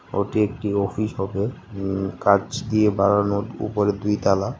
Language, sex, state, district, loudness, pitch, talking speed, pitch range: Bengali, male, Tripura, West Tripura, -22 LUFS, 105 Hz, 130 wpm, 100-110 Hz